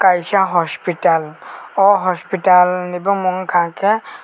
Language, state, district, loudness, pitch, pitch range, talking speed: Kokborok, Tripura, West Tripura, -16 LUFS, 185 Hz, 175-195 Hz, 115 wpm